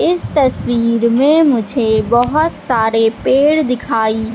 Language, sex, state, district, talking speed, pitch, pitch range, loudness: Hindi, female, Madhya Pradesh, Katni, 110 wpm, 240 Hz, 225-290 Hz, -14 LUFS